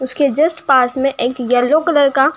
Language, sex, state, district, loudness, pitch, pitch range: Hindi, female, Uttar Pradesh, Jyotiba Phule Nagar, -14 LUFS, 270 Hz, 255-300 Hz